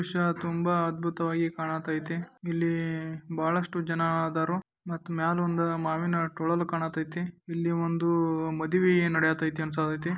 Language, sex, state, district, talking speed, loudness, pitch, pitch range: Kannada, male, Karnataka, Dharwad, 125 wpm, -29 LUFS, 165 Hz, 160-170 Hz